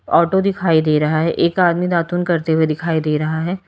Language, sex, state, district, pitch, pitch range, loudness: Hindi, female, Uttar Pradesh, Lalitpur, 170 Hz, 160-175 Hz, -17 LUFS